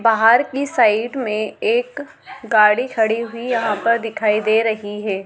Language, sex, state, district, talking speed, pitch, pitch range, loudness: Hindi, female, Madhya Pradesh, Dhar, 160 wpm, 225 Hz, 215-250 Hz, -18 LUFS